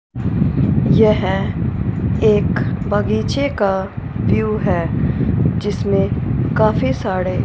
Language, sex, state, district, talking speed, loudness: Hindi, female, Punjab, Fazilka, 70 wpm, -17 LUFS